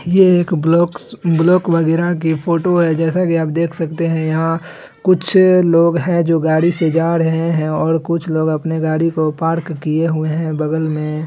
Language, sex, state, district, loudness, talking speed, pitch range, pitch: Hindi, male, Bihar, Araria, -15 LUFS, 200 wpm, 160-170 Hz, 165 Hz